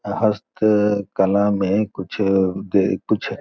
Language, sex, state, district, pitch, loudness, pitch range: Hindi, male, Bihar, Gopalganj, 100 Hz, -20 LUFS, 95-105 Hz